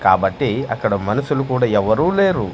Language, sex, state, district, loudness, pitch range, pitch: Telugu, male, Andhra Pradesh, Manyam, -18 LUFS, 105-145 Hz, 130 Hz